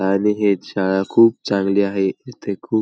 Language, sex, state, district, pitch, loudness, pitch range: Marathi, male, Maharashtra, Pune, 100 Hz, -18 LUFS, 95-105 Hz